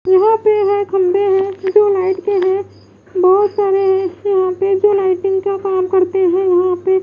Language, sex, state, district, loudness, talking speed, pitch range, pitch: Hindi, female, Bihar, West Champaran, -14 LUFS, 190 wpm, 375-400 Hz, 385 Hz